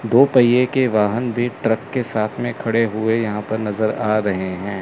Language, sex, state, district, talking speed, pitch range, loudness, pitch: Hindi, male, Chandigarh, Chandigarh, 210 wpm, 105-120 Hz, -19 LUFS, 110 Hz